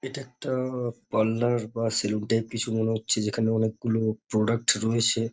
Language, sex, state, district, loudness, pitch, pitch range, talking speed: Bengali, male, West Bengal, North 24 Parganas, -26 LUFS, 115 Hz, 110-120 Hz, 160 wpm